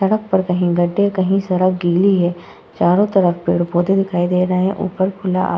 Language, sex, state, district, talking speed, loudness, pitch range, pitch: Hindi, female, Uttar Pradesh, Muzaffarnagar, 205 wpm, -17 LUFS, 175-195 Hz, 185 Hz